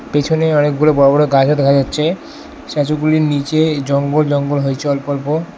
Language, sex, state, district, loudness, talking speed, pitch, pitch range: Bengali, male, West Bengal, Alipurduar, -14 LUFS, 160 wpm, 150 Hz, 140-155 Hz